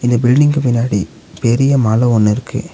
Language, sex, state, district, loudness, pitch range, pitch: Tamil, male, Tamil Nadu, Nilgiris, -14 LUFS, 110-130 Hz, 120 Hz